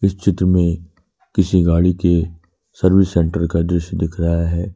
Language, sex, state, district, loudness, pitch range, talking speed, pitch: Hindi, male, Jharkhand, Ranchi, -17 LUFS, 85-90 Hz, 165 wpm, 85 Hz